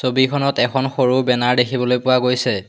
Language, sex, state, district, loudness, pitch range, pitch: Assamese, male, Assam, Hailakandi, -17 LUFS, 125-130 Hz, 125 Hz